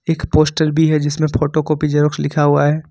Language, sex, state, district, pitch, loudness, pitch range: Hindi, male, Jharkhand, Ranchi, 150 Hz, -16 LUFS, 145-155 Hz